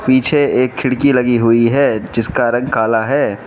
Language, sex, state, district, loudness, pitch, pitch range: Hindi, male, Manipur, Imphal West, -14 LUFS, 125 Hz, 115-140 Hz